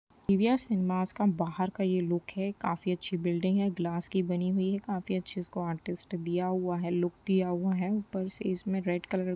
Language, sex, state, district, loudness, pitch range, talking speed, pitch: Hindi, female, Uttar Pradesh, Jyotiba Phule Nagar, -31 LUFS, 175-195 Hz, 225 wpm, 185 Hz